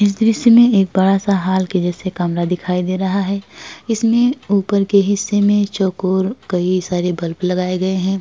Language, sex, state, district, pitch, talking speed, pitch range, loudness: Hindi, female, Uttar Pradesh, Etah, 190 Hz, 190 wpm, 185-205 Hz, -16 LUFS